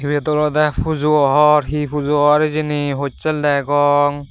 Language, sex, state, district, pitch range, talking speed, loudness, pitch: Chakma, male, Tripura, Dhalai, 145-150 Hz, 140 wpm, -16 LUFS, 150 Hz